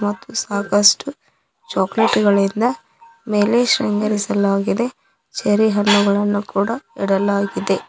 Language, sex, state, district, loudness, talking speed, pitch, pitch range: Kannada, female, Karnataka, Koppal, -18 LUFS, 75 wpm, 205 Hz, 200-225 Hz